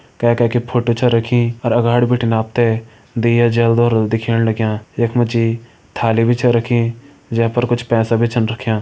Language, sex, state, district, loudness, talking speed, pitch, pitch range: Hindi, male, Uttarakhand, Uttarkashi, -16 LUFS, 190 wpm, 115 Hz, 115-120 Hz